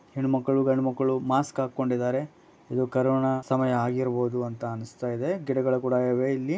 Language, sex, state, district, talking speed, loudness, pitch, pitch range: Kannada, male, Karnataka, Bellary, 120 wpm, -26 LUFS, 130 Hz, 125-135 Hz